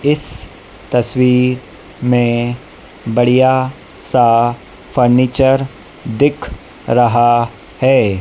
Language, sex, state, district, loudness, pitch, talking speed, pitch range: Hindi, male, Madhya Pradesh, Dhar, -14 LUFS, 120 Hz, 65 wpm, 115-130 Hz